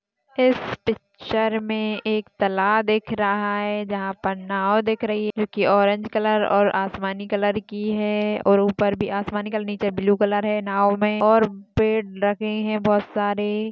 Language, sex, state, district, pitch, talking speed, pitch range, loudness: Hindi, female, Maharashtra, Sindhudurg, 205 Hz, 180 wpm, 200-215 Hz, -22 LUFS